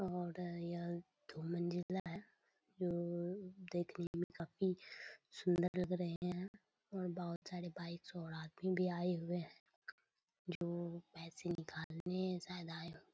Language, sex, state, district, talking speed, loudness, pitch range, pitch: Hindi, female, Bihar, Purnia, 120 wpm, -44 LUFS, 170-180 Hz, 175 Hz